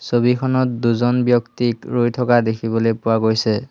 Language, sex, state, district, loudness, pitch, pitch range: Assamese, male, Assam, Hailakandi, -18 LUFS, 120 Hz, 115-125 Hz